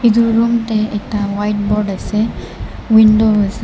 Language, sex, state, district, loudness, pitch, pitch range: Nagamese, male, Nagaland, Dimapur, -14 LUFS, 215 Hz, 210-225 Hz